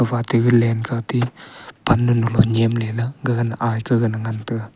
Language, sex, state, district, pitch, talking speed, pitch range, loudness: Wancho, male, Arunachal Pradesh, Longding, 115 Hz, 150 wpm, 115-120 Hz, -20 LUFS